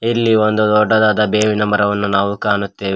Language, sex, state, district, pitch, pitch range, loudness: Kannada, male, Karnataka, Koppal, 105 Hz, 100-110 Hz, -15 LUFS